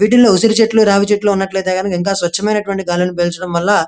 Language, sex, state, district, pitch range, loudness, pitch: Telugu, male, Andhra Pradesh, Krishna, 180-210 Hz, -14 LUFS, 195 Hz